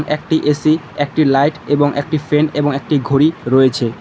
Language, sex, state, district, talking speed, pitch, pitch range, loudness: Bengali, male, West Bengal, Cooch Behar, 165 wpm, 145 Hz, 140-155 Hz, -15 LUFS